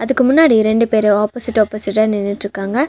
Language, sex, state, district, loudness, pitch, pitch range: Tamil, female, Tamil Nadu, Nilgiris, -15 LUFS, 215 Hz, 205-245 Hz